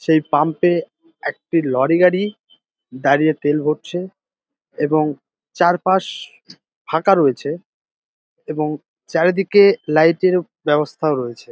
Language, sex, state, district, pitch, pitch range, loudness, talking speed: Bengali, male, West Bengal, Dakshin Dinajpur, 165 Hz, 150-190 Hz, -18 LUFS, 100 wpm